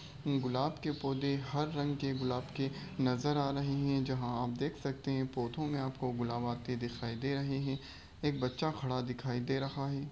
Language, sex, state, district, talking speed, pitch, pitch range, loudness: Hindi, male, Bihar, Begusarai, 195 wpm, 135 Hz, 125-140 Hz, -36 LUFS